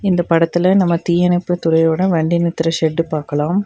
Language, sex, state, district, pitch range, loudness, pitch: Tamil, female, Tamil Nadu, Nilgiris, 165-175 Hz, -16 LUFS, 170 Hz